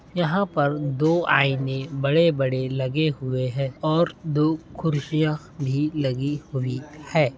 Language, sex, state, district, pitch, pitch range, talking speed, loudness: Hindi, male, Uttar Pradesh, Etah, 145 Hz, 135-155 Hz, 130 wpm, -24 LUFS